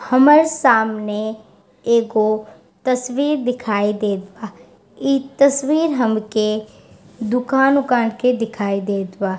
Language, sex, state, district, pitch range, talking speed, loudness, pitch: Bhojpuri, female, Bihar, East Champaran, 210-260 Hz, 100 wpm, -18 LUFS, 225 Hz